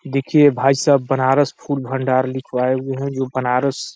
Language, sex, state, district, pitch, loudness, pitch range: Hindi, male, Uttar Pradesh, Deoria, 135 Hz, -18 LUFS, 130-140 Hz